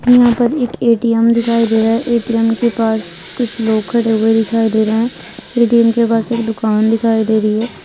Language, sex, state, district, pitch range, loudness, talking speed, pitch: Hindi, female, Chhattisgarh, Bastar, 220-235 Hz, -14 LUFS, 215 wpm, 230 Hz